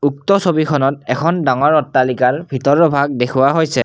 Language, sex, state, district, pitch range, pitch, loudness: Assamese, male, Assam, Kamrup Metropolitan, 130-155 Hz, 140 Hz, -15 LUFS